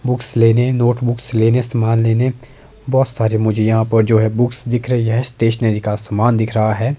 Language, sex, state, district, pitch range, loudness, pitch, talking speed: Hindi, male, Himachal Pradesh, Shimla, 110-125 Hz, -16 LUFS, 115 Hz, 225 wpm